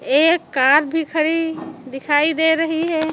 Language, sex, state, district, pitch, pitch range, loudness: Hindi, female, Chhattisgarh, Raipur, 315 Hz, 300-325 Hz, -17 LUFS